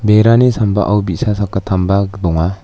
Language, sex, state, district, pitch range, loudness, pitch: Garo, male, Meghalaya, South Garo Hills, 95-105 Hz, -14 LUFS, 100 Hz